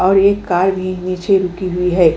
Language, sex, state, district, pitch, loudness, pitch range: Hindi, female, Uttar Pradesh, Hamirpur, 185 Hz, -16 LUFS, 180-195 Hz